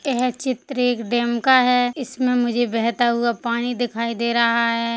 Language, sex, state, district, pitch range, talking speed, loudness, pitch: Hindi, female, Chhattisgarh, Sukma, 235-250 Hz, 180 wpm, -20 LUFS, 240 Hz